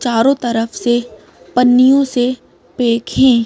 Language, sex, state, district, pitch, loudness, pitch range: Hindi, female, Madhya Pradesh, Bhopal, 245 Hz, -14 LUFS, 235-255 Hz